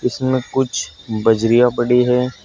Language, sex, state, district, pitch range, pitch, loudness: Hindi, male, Uttar Pradesh, Saharanpur, 115-125 Hz, 125 Hz, -17 LUFS